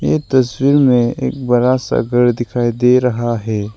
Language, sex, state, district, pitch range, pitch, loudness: Hindi, male, Arunachal Pradesh, Lower Dibang Valley, 120-130 Hz, 125 Hz, -15 LUFS